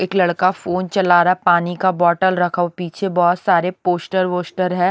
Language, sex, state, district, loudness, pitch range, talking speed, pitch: Hindi, female, Haryana, Rohtak, -17 LUFS, 175-185 Hz, 210 wpm, 180 Hz